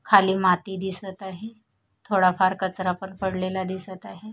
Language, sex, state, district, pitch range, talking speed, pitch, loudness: Marathi, female, Maharashtra, Mumbai Suburban, 185-195 Hz, 140 wpm, 190 Hz, -24 LUFS